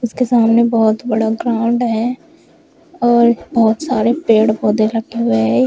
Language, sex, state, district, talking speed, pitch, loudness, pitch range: Hindi, female, Uttar Pradesh, Shamli, 150 wpm, 230 Hz, -15 LUFS, 220-240 Hz